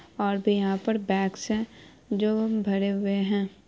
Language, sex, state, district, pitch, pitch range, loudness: Hindi, female, Bihar, Araria, 200 Hz, 195-220 Hz, -27 LUFS